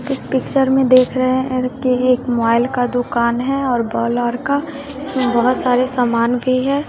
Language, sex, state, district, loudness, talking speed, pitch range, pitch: Hindi, female, Bihar, West Champaran, -16 LUFS, 185 wpm, 245-265 Hz, 255 Hz